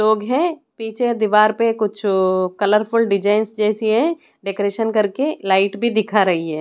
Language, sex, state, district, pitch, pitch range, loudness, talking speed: Hindi, female, Odisha, Khordha, 215 Hz, 200-225 Hz, -18 LUFS, 180 wpm